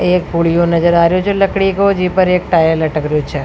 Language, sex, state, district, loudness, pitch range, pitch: Rajasthani, female, Rajasthan, Nagaur, -13 LUFS, 165-185 Hz, 175 Hz